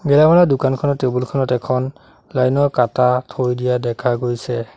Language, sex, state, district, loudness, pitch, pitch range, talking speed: Assamese, male, Assam, Sonitpur, -17 LUFS, 125 Hz, 125-135 Hz, 150 wpm